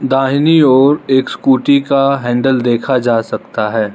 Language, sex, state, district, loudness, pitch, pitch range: Hindi, male, Arunachal Pradesh, Lower Dibang Valley, -12 LUFS, 135 Hz, 125-145 Hz